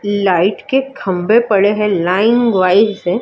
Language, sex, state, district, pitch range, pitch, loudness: Hindi, female, Maharashtra, Mumbai Suburban, 185-225 Hz, 205 Hz, -13 LUFS